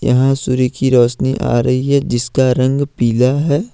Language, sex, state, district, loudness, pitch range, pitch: Hindi, male, Jharkhand, Ranchi, -14 LUFS, 125-140 Hz, 130 Hz